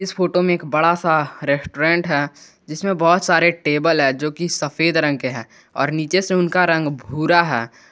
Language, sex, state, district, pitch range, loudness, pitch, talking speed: Hindi, male, Jharkhand, Garhwa, 145-175 Hz, -18 LUFS, 160 Hz, 195 wpm